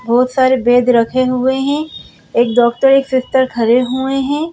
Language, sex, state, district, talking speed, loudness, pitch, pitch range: Hindi, female, Madhya Pradesh, Bhopal, 170 wpm, -13 LUFS, 255 Hz, 245-270 Hz